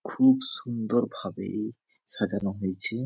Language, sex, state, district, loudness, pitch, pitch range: Bengali, male, West Bengal, Jhargram, -28 LUFS, 115 Hz, 100-120 Hz